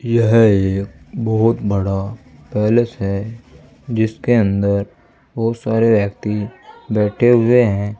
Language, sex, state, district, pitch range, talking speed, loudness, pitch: Hindi, male, Uttar Pradesh, Saharanpur, 100-115 Hz, 105 wpm, -17 LUFS, 110 Hz